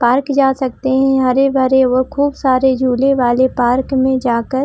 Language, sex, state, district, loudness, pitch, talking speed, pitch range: Hindi, female, Jharkhand, Jamtara, -14 LUFS, 260 Hz, 165 wpm, 255-270 Hz